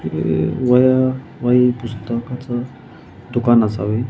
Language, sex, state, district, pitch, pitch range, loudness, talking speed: Marathi, male, Maharashtra, Mumbai Suburban, 120 Hz, 105-125 Hz, -17 LUFS, 105 wpm